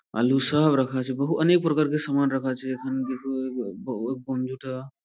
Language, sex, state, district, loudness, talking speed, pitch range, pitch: Bengali, male, West Bengal, Purulia, -23 LUFS, 130 wpm, 130-140 Hz, 130 Hz